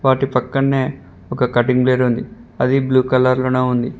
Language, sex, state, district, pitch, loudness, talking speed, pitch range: Telugu, male, Telangana, Mahabubabad, 130 Hz, -17 LUFS, 165 wpm, 125-130 Hz